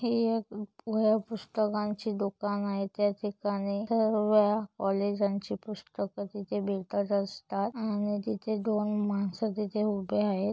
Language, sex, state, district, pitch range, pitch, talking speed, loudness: Marathi, female, Maharashtra, Chandrapur, 200-215 Hz, 210 Hz, 120 wpm, -31 LUFS